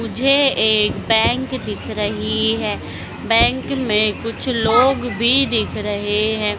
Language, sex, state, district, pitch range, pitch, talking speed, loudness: Hindi, female, Madhya Pradesh, Dhar, 215-255 Hz, 225 Hz, 125 wpm, -17 LUFS